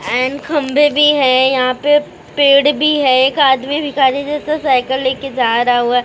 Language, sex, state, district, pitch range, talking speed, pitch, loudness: Hindi, female, Maharashtra, Mumbai Suburban, 260-295 Hz, 200 wpm, 275 Hz, -13 LUFS